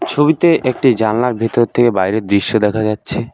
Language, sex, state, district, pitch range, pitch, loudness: Bengali, male, West Bengal, Alipurduar, 110-130 Hz, 115 Hz, -14 LUFS